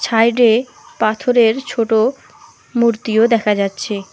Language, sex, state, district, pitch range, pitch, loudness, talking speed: Bengali, female, West Bengal, Alipurduar, 215-235 Hz, 225 Hz, -15 LUFS, 85 wpm